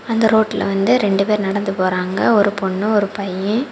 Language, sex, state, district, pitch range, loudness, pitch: Tamil, female, Tamil Nadu, Kanyakumari, 195-215 Hz, -17 LUFS, 200 Hz